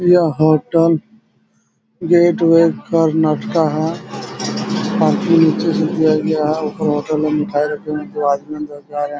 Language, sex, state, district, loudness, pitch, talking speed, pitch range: Hindi, male, Chhattisgarh, Raigarh, -16 LUFS, 155 Hz, 115 wpm, 150-165 Hz